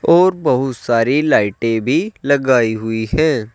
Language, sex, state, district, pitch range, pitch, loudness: Hindi, male, Uttar Pradesh, Saharanpur, 115-155 Hz, 130 Hz, -16 LUFS